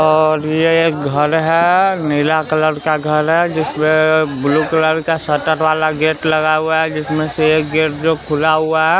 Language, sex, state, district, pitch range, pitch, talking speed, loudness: Hindi, male, Bihar, West Champaran, 155-160 Hz, 155 Hz, 185 wpm, -14 LUFS